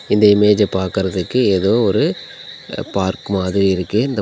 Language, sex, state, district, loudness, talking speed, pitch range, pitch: Tamil, male, Tamil Nadu, Nilgiris, -16 LUFS, 130 wpm, 95-105 Hz, 100 Hz